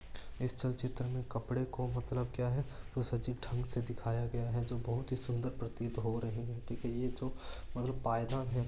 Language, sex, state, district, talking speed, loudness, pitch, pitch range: Marwari, male, Rajasthan, Churu, 215 wpm, -38 LUFS, 125 Hz, 120-125 Hz